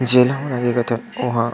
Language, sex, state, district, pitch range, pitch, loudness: Chhattisgarhi, male, Chhattisgarh, Sukma, 120-125 Hz, 125 Hz, -19 LUFS